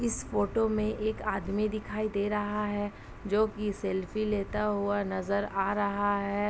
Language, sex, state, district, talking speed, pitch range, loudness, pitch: Hindi, female, Uttar Pradesh, Ghazipur, 165 wpm, 200-215 Hz, -31 LUFS, 205 Hz